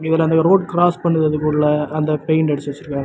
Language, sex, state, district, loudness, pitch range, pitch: Tamil, male, Tamil Nadu, Kanyakumari, -17 LUFS, 150-165 Hz, 155 Hz